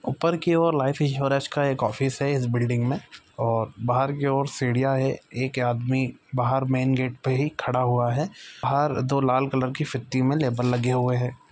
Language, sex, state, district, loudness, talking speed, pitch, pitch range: Maithili, male, Bihar, Supaul, -24 LUFS, 205 wpm, 130 Hz, 125-140 Hz